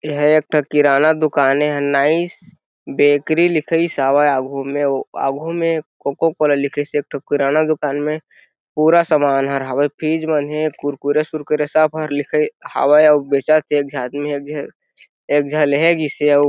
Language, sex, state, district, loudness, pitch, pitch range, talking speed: Chhattisgarhi, male, Chhattisgarh, Jashpur, -17 LUFS, 150 Hz, 145-155 Hz, 180 wpm